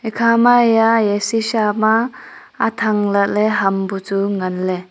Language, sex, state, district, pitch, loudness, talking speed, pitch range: Wancho, female, Arunachal Pradesh, Longding, 210 Hz, -16 LUFS, 120 wpm, 195-225 Hz